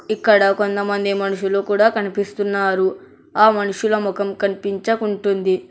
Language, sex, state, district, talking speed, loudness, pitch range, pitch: Telugu, male, Telangana, Hyderabad, 95 wpm, -18 LUFS, 195-210 Hz, 200 Hz